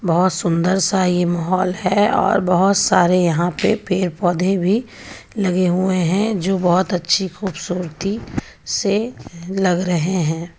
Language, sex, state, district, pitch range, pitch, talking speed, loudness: Hindi, female, Jharkhand, Ranchi, 175-195 Hz, 185 Hz, 140 wpm, -18 LUFS